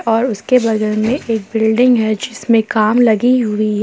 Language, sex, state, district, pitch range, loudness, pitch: Hindi, female, Jharkhand, Palamu, 215-240 Hz, -14 LUFS, 225 Hz